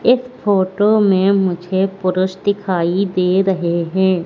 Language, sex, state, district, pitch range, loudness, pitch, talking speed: Hindi, female, Madhya Pradesh, Katni, 185-200 Hz, -16 LUFS, 190 Hz, 125 wpm